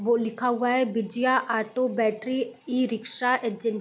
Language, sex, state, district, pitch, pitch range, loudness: Hindi, female, Uttar Pradesh, Varanasi, 235 Hz, 225-255 Hz, -26 LUFS